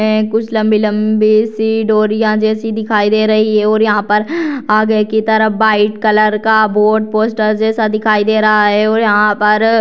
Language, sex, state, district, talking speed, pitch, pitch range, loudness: Hindi, female, Bihar, Purnia, 175 wpm, 215 Hz, 215-220 Hz, -12 LUFS